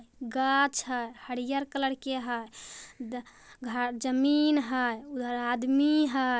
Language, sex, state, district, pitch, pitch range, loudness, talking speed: Magahi, female, Bihar, Jamui, 255 Hz, 245-275 Hz, -29 LUFS, 120 wpm